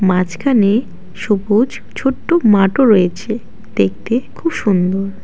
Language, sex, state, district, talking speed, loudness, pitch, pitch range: Bengali, female, West Bengal, Alipurduar, 90 wpm, -15 LUFS, 210 Hz, 190-245 Hz